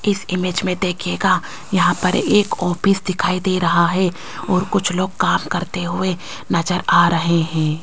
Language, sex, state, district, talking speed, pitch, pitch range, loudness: Hindi, female, Rajasthan, Jaipur, 170 wpm, 180 Hz, 175-185 Hz, -18 LUFS